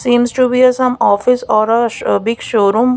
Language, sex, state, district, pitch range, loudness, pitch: English, female, Maharashtra, Gondia, 225-250 Hz, -13 LUFS, 240 Hz